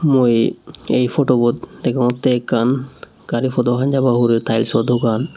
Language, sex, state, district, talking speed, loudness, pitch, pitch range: Chakma, male, Tripura, Unakoti, 125 wpm, -17 LUFS, 125 Hz, 120-130 Hz